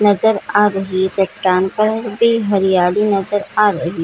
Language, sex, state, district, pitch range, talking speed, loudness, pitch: Hindi, female, Jharkhand, Sahebganj, 190-210 Hz, 165 wpm, -15 LUFS, 200 Hz